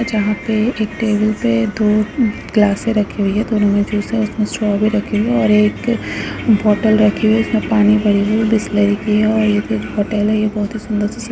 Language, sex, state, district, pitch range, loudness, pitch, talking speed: Bhojpuri, female, Uttar Pradesh, Gorakhpur, 210-220 Hz, -16 LUFS, 215 Hz, 235 wpm